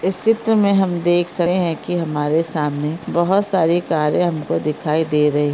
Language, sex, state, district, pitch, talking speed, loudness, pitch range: Hindi, female, Jharkhand, Jamtara, 170 Hz, 175 wpm, -18 LUFS, 150-185 Hz